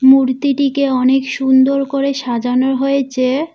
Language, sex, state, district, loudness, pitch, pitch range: Bengali, female, West Bengal, Cooch Behar, -15 LUFS, 270 Hz, 260-275 Hz